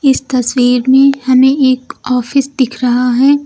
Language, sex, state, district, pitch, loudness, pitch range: Hindi, female, Uttar Pradesh, Lucknow, 260 Hz, -11 LUFS, 250-275 Hz